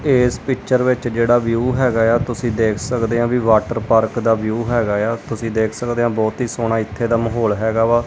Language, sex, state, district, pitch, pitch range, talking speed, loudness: Punjabi, male, Punjab, Kapurthala, 115 Hz, 115-120 Hz, 210 wpm, -18 LUFS